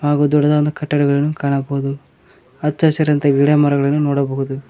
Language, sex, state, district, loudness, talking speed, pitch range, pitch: Kannada, male, Karnataka, Koppal, -16 LUFS, 115 wpm, 140-150 Hz, 145 Hz